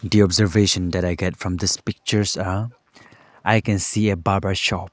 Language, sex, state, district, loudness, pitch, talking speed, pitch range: English, male, Arunachal Pradesh, Lower Dibang Valley, -20 LUFS, 100 Hz, 185 wpm, 95-105 Hz